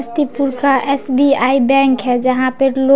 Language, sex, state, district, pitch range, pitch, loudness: Maithili, female, Bihar, Samastipur, 260-275 Hz, 270 Hz, -14 LUFS